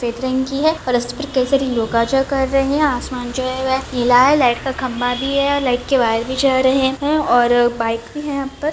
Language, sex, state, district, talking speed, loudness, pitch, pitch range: Hindi, female, Rajasthan, Churu, 170 wpm, -17 LUFS, 260 Hz, 245-275 Hz